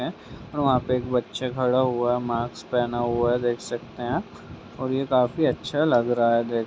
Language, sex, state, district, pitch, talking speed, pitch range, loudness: Hindi, male, Bihar, Gaya, 120 Hz, 205 wpm, 120-130 Hz, -24 LUFS